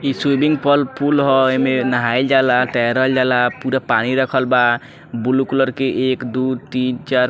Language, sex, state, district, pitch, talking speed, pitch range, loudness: Bhojpuri, male, Bihar, Muzaffarpur, 130 Hz, 180 wpm, 125-135 Hz, -17 LUFS